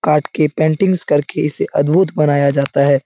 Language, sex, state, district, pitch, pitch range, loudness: Hindi, male, Bihar, Jahanabad, 150 Hz, 140-155 Hz, -15 LUFS